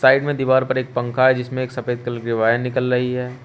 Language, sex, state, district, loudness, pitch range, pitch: Hindi, male, Uttar Pradesh, Shamli, -20 LUFS, 120-130 Hz, 125 Hz